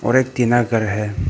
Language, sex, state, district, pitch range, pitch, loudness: Hindi, male, Arunachal Pradesh, Papum Pare, 105-120 Hz, 115 Hz, -18 LUFS